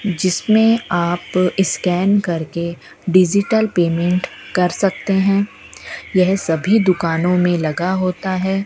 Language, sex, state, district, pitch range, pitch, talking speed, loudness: Hindi, female, Rajasthan, Bikaner, 175-195 Hz, 185 Hz, 110 wpm, -17 LUFS